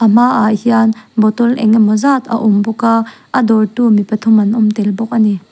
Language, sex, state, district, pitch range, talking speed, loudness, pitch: Mizo, female, Mizoram, Aizawl, 215-230 Hz, 230 wpm, -12 LUFS, 220 Hz